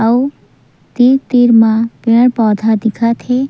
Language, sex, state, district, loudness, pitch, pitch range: Chhattisgarhi, female, Chhattisgarh, Sukma, -12 LUFS, 230 Hz, 225-250 Hz